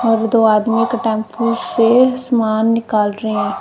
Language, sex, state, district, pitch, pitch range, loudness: Hindi, female, Punjab, Kapurthala, 225 Hz, 220-230 Hz, -15 LUFS